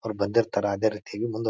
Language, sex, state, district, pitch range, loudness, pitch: Kannada, male, Karnataka, Bijapur, 100-115 Hz, -26 LUFS, 110 Hz